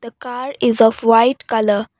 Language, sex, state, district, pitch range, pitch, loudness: English, female, Assam, Kamrup Metropolitan, 225-245 Hz, 230 Hz, -15 LUFS